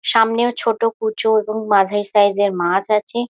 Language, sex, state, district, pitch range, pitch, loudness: Bengali, female, West Bengal, Jhargram, 205-225 Hz, 215 Hz, -17 LUFS